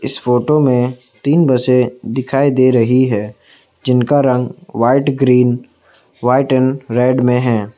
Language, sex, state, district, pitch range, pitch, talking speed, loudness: Hindi, male, Assam, Kamrup Metropolitan, 125-135 Hz, 125 Hz, 140 wpm, -14 LUFS